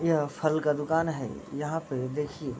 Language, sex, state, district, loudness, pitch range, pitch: Hindi, male, Bihar, Vaishali, -30 LUFS, 140-160 Hz, 150 Hz